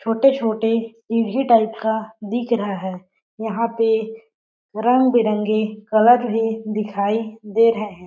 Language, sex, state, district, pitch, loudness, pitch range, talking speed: Hindi, female, Chhattisgarh, Balrampur, 225 Hz, -19 LUFS, 215-230 Hz, 120 wpm